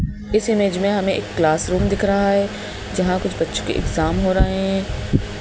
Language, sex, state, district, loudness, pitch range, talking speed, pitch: Hindi, male, Madhya Pradesh, Bhopal, -20 LUFS, 180-200 Hz, 200 wpm, 190 Hz